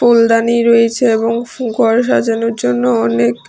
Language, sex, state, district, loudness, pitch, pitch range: Bengali, female, Tripura, West Tripura, -13 LUFS, 230 Hz, 205-235 Hz